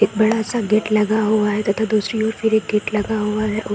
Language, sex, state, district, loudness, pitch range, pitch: Hindi, female, Bihar, Saran, -19 LUFS, 210-220 Hz, 215 Hz